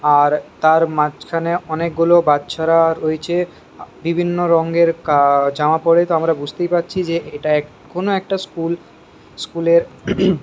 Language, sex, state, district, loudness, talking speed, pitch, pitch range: Bengali, male, West Bengal, Kolkata, -17 LUFS, 130 wpm, 165 Hz, 150-170 Hz